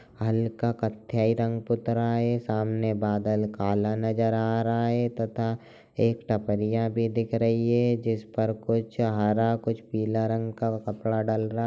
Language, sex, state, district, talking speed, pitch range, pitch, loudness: Hindi, male, Chhattisgarh, Raigarh, 165 wpm, 110-115 Hz, 115 Hz, -27 LUFS